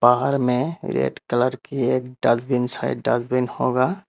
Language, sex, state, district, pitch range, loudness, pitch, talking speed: Hindi, male, Tripura, Unakoti, 125-135 Hz, -22 LUFS, 125 Hz, 145 wpm